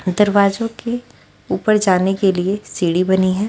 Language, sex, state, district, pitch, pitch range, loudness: Hindi, female, Haryana, Rohtak, 195 Hz, 185-210 Hz, -17 LUFS